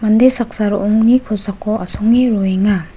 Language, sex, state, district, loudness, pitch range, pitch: Garo, female, Meghalaya, West Garo Hills, -15 LUFS, 205-235 Hz, 215 Hz